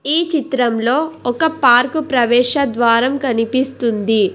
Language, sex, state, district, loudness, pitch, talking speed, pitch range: Telugu, female, Telangana, Hyderabad, -15 LUFS, 250 Hz, 85 wpm, 235-285 Hz